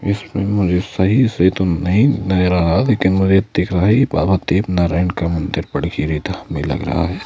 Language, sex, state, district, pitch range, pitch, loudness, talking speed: Hindi, male, Madhya Pradesh, Bhopal, 90-100 Hz, 95 Hz, -16 LUFS, 215 wpm